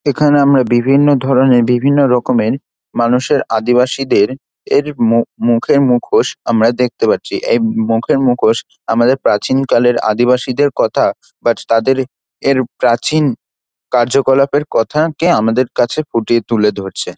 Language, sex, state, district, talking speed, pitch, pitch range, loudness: Bengali, male, West Bengal, Dakshin Dinajpur, 120 wpm, 125 Hz, 115-140 Hz, -13 LUFS